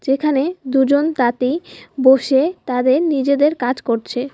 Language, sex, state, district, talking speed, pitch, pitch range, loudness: Bengali, female, West Bengal, Alipurduar, 110 wpm, 270 Hz, 255-285 Hz, -17 LUFS